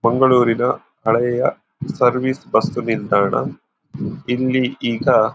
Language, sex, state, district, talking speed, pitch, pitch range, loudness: Kannada, male, Karnataka, Dakshina Kannada, 80 wpm, 125 Hz, 120-130 Hz, -18 LUFS